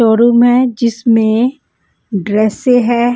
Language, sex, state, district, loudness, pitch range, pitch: Hindi, female, Bihar, Patna, -12 LUFS, 220-245 Hz, 235 Hz